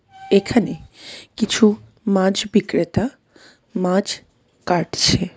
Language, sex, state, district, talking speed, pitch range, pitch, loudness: Bengali, female, West Bengal, Darjeeling, 65 wpm, 190-220 Hz, 200 Hz, -19 LUFS